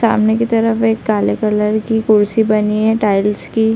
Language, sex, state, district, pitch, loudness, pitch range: Hindi, female, Chhattisgarh, Sarguja, 220 Hz, -14 LUFS, 210-225 Hz